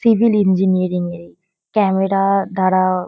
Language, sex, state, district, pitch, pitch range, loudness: Bengali, female, West Bengal, Kolkata, 190 Hz, 185-195 Hz, -16 LUFS